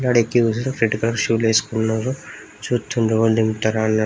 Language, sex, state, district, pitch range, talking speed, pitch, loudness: Telugu, male, Andhra Pradesh, Srikakulam, 110-120 Hz, 145 wpm, 115 Hz, -19 LUFS